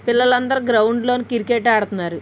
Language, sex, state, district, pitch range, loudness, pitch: Telugu, female, Andhra Pradesh, Krishna, 220-245 Hz, -17 LUFS, 240 Hz